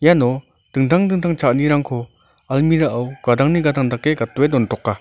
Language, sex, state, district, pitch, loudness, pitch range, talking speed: Garo, male, Meghalaya, North Garo Hills, 135 Hz, -18 LUFS, 120-155 Hz, 130 wpm